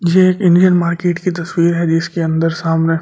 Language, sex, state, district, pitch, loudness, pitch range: Hindi, male, Delhi, New Delhi, 170 Hz, -14 LUFS, 165-175 Hz